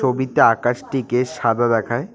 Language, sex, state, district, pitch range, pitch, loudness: Bengali, male, West Bengal, Cooch Behar, 115-130 Hz, 120 Hz, -18 LUFS